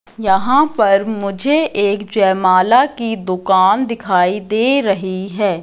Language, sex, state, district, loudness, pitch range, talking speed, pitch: Hindi, female, Madhya Pradesh, Katni, -15 LUFS, 190-230 Hz, 115 wpm, 205 Hz